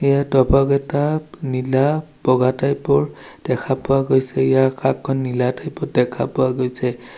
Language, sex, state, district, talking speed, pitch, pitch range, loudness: Assamese, male, Assam, Sonitpur, 140 wpm, 130 Hz, 130-140 Hz, -19 LUFS